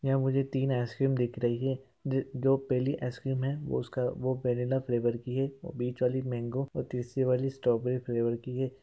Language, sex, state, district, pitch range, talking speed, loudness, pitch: Hindi, male, Chhattisgarh, Jashpur, 125-135 Hz, 195 wpm, -31 LUFS, 130 Hz